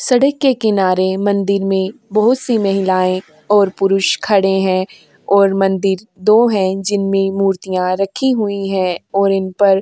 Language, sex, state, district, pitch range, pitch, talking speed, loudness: Hindi, female, Uttar Pradesh, Jyotiba Phule Nagar, 190-205 Hz, 195 Hz, 145 wpm, -15 LUFS